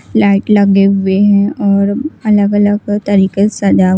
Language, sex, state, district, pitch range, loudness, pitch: Hindi, female, Bihar, West Champaran, 195-205 Hz, -11 LUFS, 200 Hz